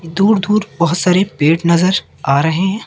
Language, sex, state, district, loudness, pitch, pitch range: Hindi, male, Madhya Pradesh, Katni, -14 LUFS, 180 Hz, 165-195 Hz